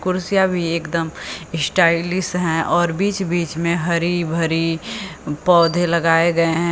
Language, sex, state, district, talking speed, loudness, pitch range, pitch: Hindi, female, Uttar Pradesh, Lucknow, 135 wpm, -19 LUFS, 165-180 Hz, 170 Hz